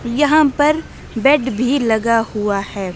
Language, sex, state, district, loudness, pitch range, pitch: Hindi, female, Himachal Pradesh, Shimla, -16 LUFS, 220-290 Hz, 240 Hz